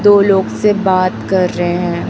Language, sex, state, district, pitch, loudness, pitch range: Hindi, female, Chhattisgarh, Raipur, 190 Hz, -14 LUFS, 180-200 Hz